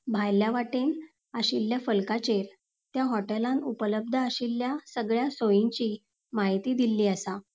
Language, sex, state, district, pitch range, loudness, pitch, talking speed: Konkani, female, Goa, North and South Goa, 210-255 Hz, -28 LUFS, 230 Hz, 105 wpm